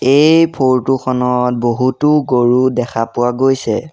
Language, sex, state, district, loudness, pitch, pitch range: Assamese, male, Assam, Sonitpur, -14 LUFS, 130 Hz, 125-135 Hz